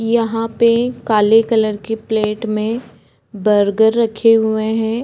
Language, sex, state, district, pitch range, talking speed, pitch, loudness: Hindi, female, Uttarakhand, Tehri Garhwal, 215-230 Hz, 130 wpm, 225 Hz, -16 LUFS